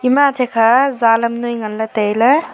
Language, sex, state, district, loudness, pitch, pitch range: Wancho, female, Arunachal Pradesh, Longding, -15 LUFS, 235 Hz, 225-255 Hz